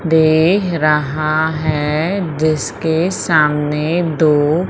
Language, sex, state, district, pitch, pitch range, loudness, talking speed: Hindi, female, Madhya Pradesh, Umaria, 155 Hz, 150-165 Hz, -15 LUFS, 75 wpm